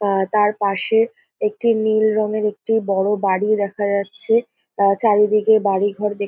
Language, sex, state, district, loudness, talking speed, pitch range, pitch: Bengali, female, West Bengal, North 24 Parganas, -18 LUFS, 145 wpm, 200-220 Hz, 210 Hz